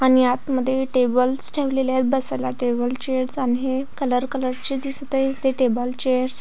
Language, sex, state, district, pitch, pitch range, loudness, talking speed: Marathi, female, Maharashtra, Pune, 260 Hz, 250-270 Hz, -20 LUFS, 170 wpm